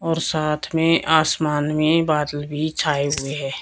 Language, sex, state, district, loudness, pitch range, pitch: Hindi, female, Himachal Pradesh, Shimla, -20 LUFS, 145-160 Hz, 155 Hz